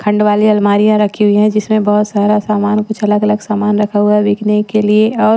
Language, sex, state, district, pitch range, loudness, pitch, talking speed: Hindi, female, Maharashtra, Washim, 210-215 Hz, -12 LUFS, 210 Hz, 225 wpm